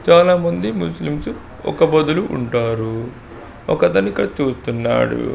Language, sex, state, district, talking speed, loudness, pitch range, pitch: Telugu, male, Andhra Pradesh, Srikakulam, 100 wpm, -18 LUFS, 95-145 Hz, 115 Hz